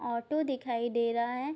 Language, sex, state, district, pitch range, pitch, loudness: Hindi, female, Bihar, Madhepura, 235-270 Hz, 240 Hz, -32 LUFS